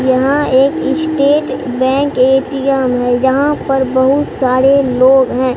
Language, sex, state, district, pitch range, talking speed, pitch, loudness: Hindi, male, Bihar, Katihar, 255-280 Hz, 130 wpm, 265 Hz, -12 LUFS